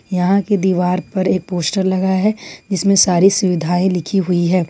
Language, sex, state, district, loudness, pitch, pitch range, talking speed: Hindi, female, Jharkhand, Ranchi, -16 LUFS, 185 Hz, 180-195 Hz, 180 wpm